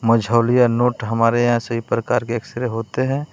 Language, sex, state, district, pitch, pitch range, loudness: Hindi, male, Bihar, West Champaran, 120 Hz, 115-125 Hz, -19 LUFS